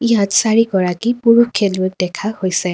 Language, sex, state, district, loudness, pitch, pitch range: Assamese, female, Assam, Kamrup Metropolitan, -15 LUFS, 205 Hz, 185-230 Hz